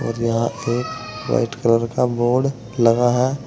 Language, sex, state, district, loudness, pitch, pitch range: Hindi, male, Uttar Pradesh, Saharanpur, -20 LUFS, 120 Hz, 115-125 Hz